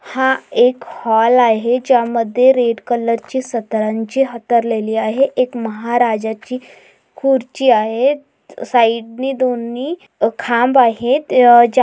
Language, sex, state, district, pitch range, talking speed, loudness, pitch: Marathi, female, Maharashtra, Pune, 230-255 Hz, 100 wpm, -15 LUFS, 240 Hz